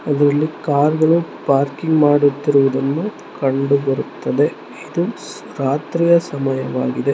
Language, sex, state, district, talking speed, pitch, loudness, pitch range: Kannada, male, Karnataka, Mysore, 75 wpm, 145 Hz, -17 LUFS, 135-155 Hz